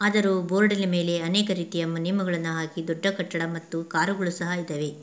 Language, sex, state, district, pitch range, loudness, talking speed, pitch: Kannada, female, Karnataka, Mysore, 165-190 Hz, -26 LUFS, 165 wpm, 175 Hz